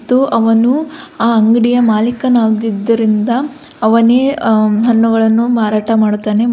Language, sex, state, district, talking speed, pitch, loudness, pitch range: Kannada, female, Karnataka, Belgaum, 90 wpm, 230 Hz, -12 LUFS, 220-245 Hz